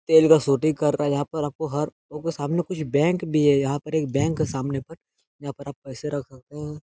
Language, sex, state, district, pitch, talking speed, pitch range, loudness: Hindi, male, Bihar, Jahanabad, 150 Hz, 260 wpm, 140-155 Hz, -23 LUFS